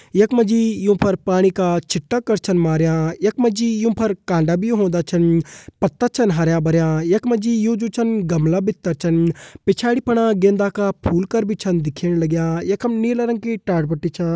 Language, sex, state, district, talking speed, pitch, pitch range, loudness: Hindi, male, Uttarakhand, Uttarkashi, 200 wpm, 195 Hz, 170-225 Hz, -18 LUFS